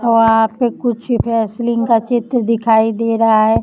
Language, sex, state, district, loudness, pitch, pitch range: Hindi, female, Maharashtra, Chandrapur, -15 LUFS, 230 Hz, 225-235 Hz